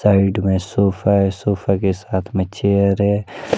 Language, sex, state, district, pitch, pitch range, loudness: Hindi, male, Himachal Pradesh, Shimla, 100 Hz, 95-100 Hz, -18 LUFS